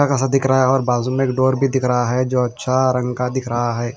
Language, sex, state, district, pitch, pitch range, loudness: Hindi, male, Punjab, Fazilka, 130 Hz, 125-130 Hz, -18 LUFS